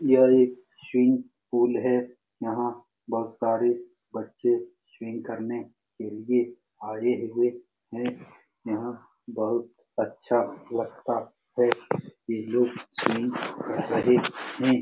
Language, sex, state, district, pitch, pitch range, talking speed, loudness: Hindi, male, Bihar, Saran, 120 Hz, 115-125 Hz, 115 wpm, -27 LUFS